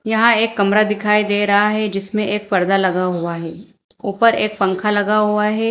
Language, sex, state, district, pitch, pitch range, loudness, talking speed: Hindi, female, Bihar, Katihar, 210 Hz, 195-215 Hz, -16 LUFS, 200 wpm